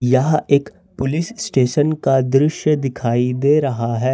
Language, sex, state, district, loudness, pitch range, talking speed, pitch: Hindi, male, Jharkhand, Ranchi, -17 LUFS, 125-150 Hz, 145 wpm, 135 Hz